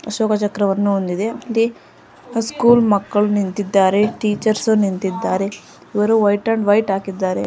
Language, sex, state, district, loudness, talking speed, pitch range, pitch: Kannada, female, Karnataka, Dharwad, -18 LUFS, 105 wpm, 195-220 Hz, 205 Hz